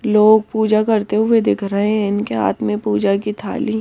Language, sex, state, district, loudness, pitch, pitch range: Hindi, female, Madhya Pradesh, Bhopal, -17 LUFS, 210 Hz, 195-220 Hz